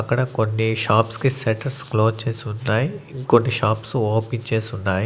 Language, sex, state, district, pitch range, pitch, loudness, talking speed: Telugu, male, Andhra Pradesh, Annamaya, 110-130 Hz, 115 Hz, -21 LUFS, 155 wpm